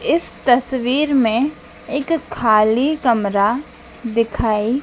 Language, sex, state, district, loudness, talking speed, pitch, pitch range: Hindi, female, Madhya Pradesh, Dhar, -18 LUFS, 85 wpm, 245 Hz, 220-280 Hz